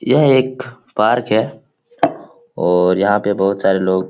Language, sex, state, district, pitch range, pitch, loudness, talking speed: Hindi, male, Uttar Pradesh, Etah, 95-140 Hz, 105 Hz, -16 LUFS, 160 wpm